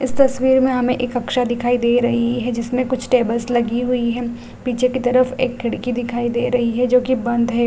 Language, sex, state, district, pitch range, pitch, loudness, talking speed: Hindi, female, Bihar, Gaya, 240-255 Hz, 245 Hz, -18 LUFS, 225 wpm